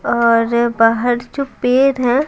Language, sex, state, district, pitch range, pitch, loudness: Hindi, female, Bihar, Patna, 235-260 Hz, 245 Hz, -15 LUFS